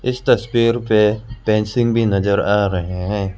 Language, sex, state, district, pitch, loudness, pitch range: Hindi, male, Arunachal Pradesh, Lower Dibang Valley, 105 Hz, -17 LUFS, 100-115 Hz